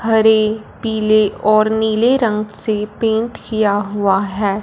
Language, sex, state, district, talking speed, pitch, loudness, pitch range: Hindi, female, Punjab, Fazilka, 130 wpm, 215 Hz, -16 LUFS, 210-220 Hz